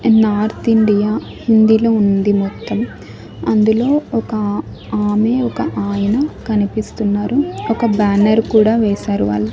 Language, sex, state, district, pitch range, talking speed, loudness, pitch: Telugu, male, Andhra Pradesh, Annamaya, 205-225 Hz, 100 wpm, -15 LUFS, 215 Hz